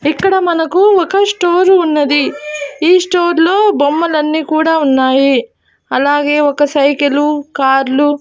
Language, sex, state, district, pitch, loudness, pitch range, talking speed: Telugu, female, Andhra Pradesh, Annamaya, 300 Hz, -12 LUFS, 285-350 Hz, 115 wpm